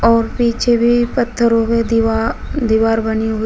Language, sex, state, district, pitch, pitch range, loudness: Hindi, female, Uttar Pradesh, Shamli, 230 Hz, 225-240 Hz, -15 LUFS